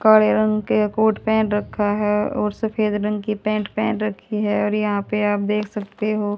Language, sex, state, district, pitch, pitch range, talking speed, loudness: Hindi, female, Haryana, Rohtak, 210 Hz, 205-215 Hz, 205 wpm, -21 LUFS